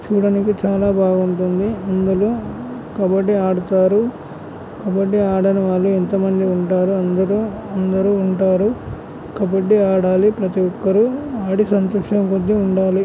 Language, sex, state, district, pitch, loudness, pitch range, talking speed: Telugu, male, Andhra Pradesh, Guntur, 195 Hz, -17 LUFS, 190-205 Hz, 100 wpm